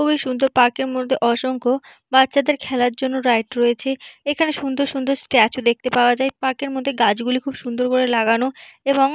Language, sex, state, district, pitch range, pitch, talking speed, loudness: Bengali, female, West Bengal, Dakshin Dinajpur, 245-275 Hz, 260 Hz, 210 wpm, -19 LUFS